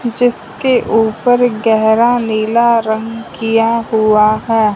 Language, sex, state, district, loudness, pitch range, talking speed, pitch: Hindi, male, Punjab, Fazilka, -13 LUFS, 220-235 Hz, 100 wpm, 225 Hz